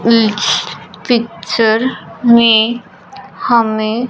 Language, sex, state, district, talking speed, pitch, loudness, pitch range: Hindi, male, Punjab, Fazilka, 60 wpm, 225 Hz, -13 LUFS, 215-235 Hz